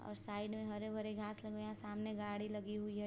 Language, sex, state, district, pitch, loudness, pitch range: Hindi, female, Bihar, Sitamarhi, 210 Hz, -44 LUFS, 210-215 Hz